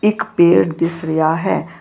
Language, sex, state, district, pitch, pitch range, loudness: Punjabi, female, Karnataka, Bangalore, 165 Hz, 160-170 Hz, -16 LUFS